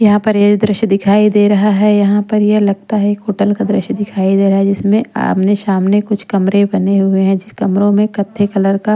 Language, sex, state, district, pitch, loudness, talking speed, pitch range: Hindi, female, Punjab, Pathankot, 205 Hz, -13 LUFS, 240 wpm, 195-210 Hz